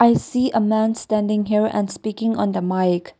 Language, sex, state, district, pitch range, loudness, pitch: English, female, Nagaland, Kohima, 205-220 Hz, -20 LUFS, 215 Hz